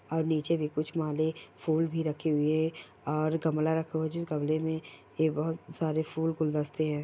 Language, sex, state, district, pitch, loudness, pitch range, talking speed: Hindi, female, Bihar, Bhagalpur, 155 Hz, -31 LUFS, 150-160 Hz, 195 wpm